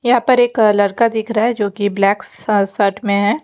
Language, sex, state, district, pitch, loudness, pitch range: Hindi, female, Chandigarh, Chandigarh, 210 Hz, -15 LUFS, 200-230 Hz